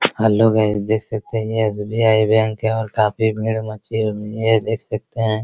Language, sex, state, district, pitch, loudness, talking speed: Hindi, male, Bihar, Araria, 110 Hz, -19 LUFS, 220 wpm